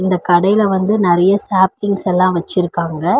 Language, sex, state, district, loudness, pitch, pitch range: Tamil, female, Tamil Nadu, Chennai, -14 LUFS, 185 Hz, 175-200 Hz